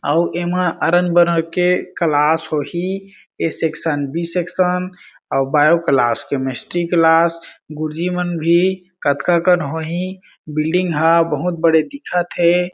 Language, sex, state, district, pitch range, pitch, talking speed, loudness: Chhattisgarhi, male, Chhattisgarh, Jashpur, 160-180 Hz, 170 Hz, 140 wpm, -17 LUFS